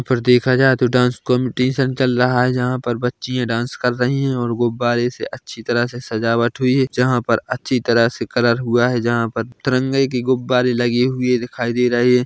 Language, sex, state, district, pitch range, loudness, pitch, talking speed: Hindi, male, Chhattisgarh, Bilaspur, 120-125 Hz, -18 LUFS, 125 Hz, 215 wpm